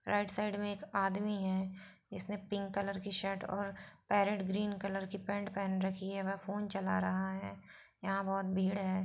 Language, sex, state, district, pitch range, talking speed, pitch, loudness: Hindi, female, Bihar, Saran, 190-205 Hz, 200 wpm, 195 Hz, -37 LUFS